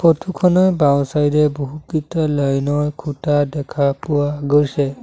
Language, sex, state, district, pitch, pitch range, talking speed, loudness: Assamese, male, Assam, Sonitpur, 145 Hz, 140-155 Hz, 145 wpm, -18 LUFS